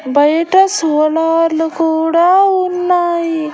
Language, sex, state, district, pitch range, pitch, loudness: Telugu, female, Andhra Pradesh, Annamaya, 320-355 Hz, 330 Hz, -13 LUFS